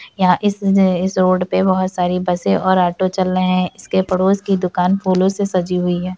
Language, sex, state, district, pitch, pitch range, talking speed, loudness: Hindi, female, Bihar, Jahanabad, 185 Hz, 180-190 Hz, 215 wpm, -16 LUFS